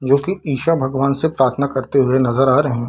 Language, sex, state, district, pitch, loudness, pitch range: Hindi, male, Bihar, Samastipur, 135 Hz, -17 LUFS, 130-140 Hz